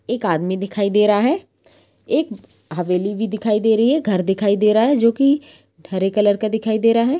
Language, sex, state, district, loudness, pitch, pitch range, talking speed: Hindi, female, Bihar, Purnia, -18 LUFS, 215 Hz, 195-230 Hz, 225 wpm